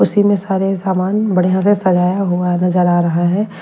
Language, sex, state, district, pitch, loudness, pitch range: Hindi, female, Bihar, Kaimur, 185 Hz, -15 LUFS, 180-195 Hz